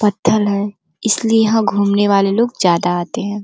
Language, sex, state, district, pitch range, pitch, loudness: Hindi, female, Uttar Pradesh, Gorakhpur, 195-225 Hz, 205 Hz, -15 LUFS